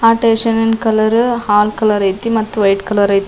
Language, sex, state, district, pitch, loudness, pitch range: Kannada, female, Karnataka, Dharwad, 220 Hz, -14 LUFS, 205-230 Hz